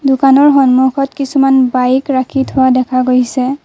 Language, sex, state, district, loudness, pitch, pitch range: Assamese, female, Assam, Kamrup Metropolitan, -11 LUFS, 265 Hz, 255-275 Hz